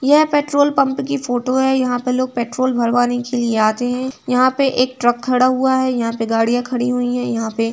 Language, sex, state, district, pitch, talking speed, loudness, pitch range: Hindi, female, Uttar Pradesh, Etah, 250 Hz, 240 wpm, -17 LUFS, 240-260 Hz